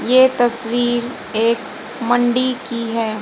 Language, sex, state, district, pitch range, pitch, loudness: Hindi, female, Haryana, Jhajjar, 230-250 Hz, 240 Hz, -17 LUFS